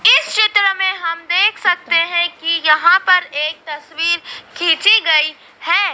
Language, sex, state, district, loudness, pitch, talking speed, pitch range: Hindi, female, Madhya Pradesh, Dhar, -14 LUFS, 345 Hz, 150 wpm, 325-380 Hz